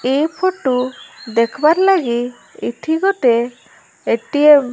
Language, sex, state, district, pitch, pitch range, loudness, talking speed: Odia, female, Odisha, Malkangiri, 275 Hz, 245-320 Hz, -16 LUFS, 100 wpm